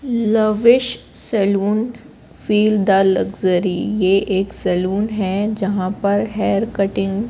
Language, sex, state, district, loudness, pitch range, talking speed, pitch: Hindi, female, Madhya Pradesh, Katni, -17 LUFS, 195-215 Hz, 115 wpm, 200 Hz